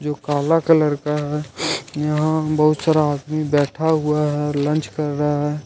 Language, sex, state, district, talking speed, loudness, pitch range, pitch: Hindi, male, Jharkhand, Ranchi, 170 wpm, -19 LUFS, 145-155 Hz, 150 Hz